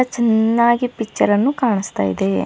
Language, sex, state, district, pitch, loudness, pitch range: Kannada, female, Karnataka, Bidar, 225 Hz, -17 LUFS, 195-240 Hz